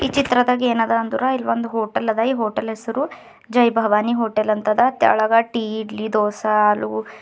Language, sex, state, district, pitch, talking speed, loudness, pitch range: Kannada, male, Karnataka, Bidar, 225 Hz, 185 wpm, -19 LUFS, 215-240 Hz